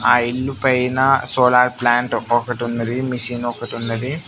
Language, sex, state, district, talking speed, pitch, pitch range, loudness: Telugu, male, Telangana, Mahabubabad, 140 wpm, 125 Hz, 120-130 Hz, -18 LUFS